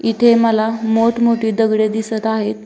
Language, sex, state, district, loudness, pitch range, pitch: Marathi, female, Maharashtra, Dhule, -15 LUFS, 220-230 Hz, 220 Hz